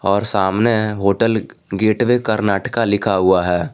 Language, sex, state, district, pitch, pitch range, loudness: Hindi, male, Jharkhand, Garhwa, 100 Hz, 95-110 Hz, -16 LUFS